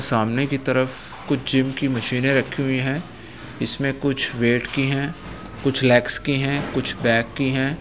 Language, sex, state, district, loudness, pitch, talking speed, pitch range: Hindi, male, Uttar Pradesh, Etah, -21 LUFS, 135 Hz, 175 wpm, 120-140 Hz